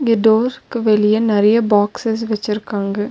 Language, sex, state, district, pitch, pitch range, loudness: Tamil, female, Tamil Nadu, Nilgiris, 215 Hz, 210-225 Hz, -16 LUFS